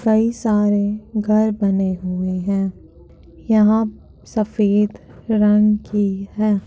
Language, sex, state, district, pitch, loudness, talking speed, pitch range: Hindi, female, Uttar Pradesh, Jyotiba Phule Nagar, 210 Hz, -18 LUFS, 100 wpm, 195-215 Hz